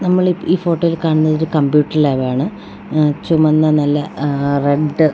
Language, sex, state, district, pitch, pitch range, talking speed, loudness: Malayalam, female, Kerala, Wayanad, 155 Hz, 145-165 Hz, 150 wpm, -15 LUFS